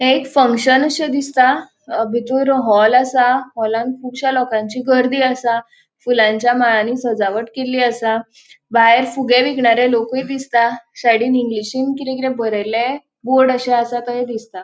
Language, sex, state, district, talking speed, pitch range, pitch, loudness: Konkani, female, Goa, North and South Goa, 135 wpm, 230-260 Hz, 245 Hz, -16 LUFS